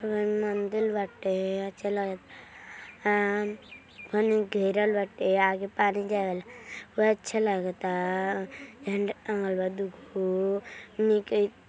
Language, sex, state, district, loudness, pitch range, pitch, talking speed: Hindi, female, Uttar Pradesh, Deoria, -28 LUFS, 195-210 Hz, 205 Hz, 100 wpm